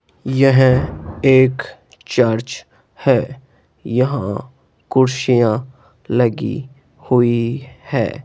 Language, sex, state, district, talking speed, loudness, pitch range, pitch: Hindi, male, Rajasthan, Jaipur, 65 wpm, -17 LUFS, 120-135 Hz, 130 Hz